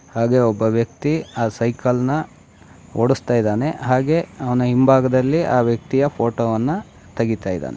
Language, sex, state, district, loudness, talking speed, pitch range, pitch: Kannada, male, Karnataka, Shimoga, -19 LUFS, 115 wpm, 115-135 Hz, 125 Hz